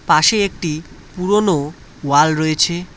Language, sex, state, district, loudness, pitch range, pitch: Bengali, male, West Bengal, Cooch Behar, -16 LUFS, 155-190 Hz, 170 Hz